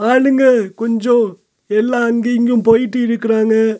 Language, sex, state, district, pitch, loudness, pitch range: Tamil, male, Tamil Nadu, Nilgiris, 230 Hz, -14 LUFS, 220-245 Hz